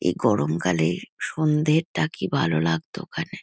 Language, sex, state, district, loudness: Bengali, female, West Bengal, Kolkata, -24 LUFS